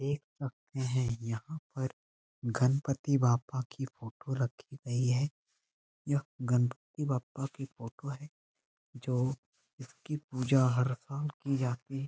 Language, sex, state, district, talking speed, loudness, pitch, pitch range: Hindi, male, Bihar, Darbhanga, 130 wpm, -34 LUFS, 130 Hz, 125-140 Hz